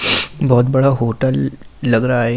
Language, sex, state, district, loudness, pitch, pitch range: Hindi, male, Delhi, New Delhi, -15 LUFS, 125 Hz, 115-130 Hz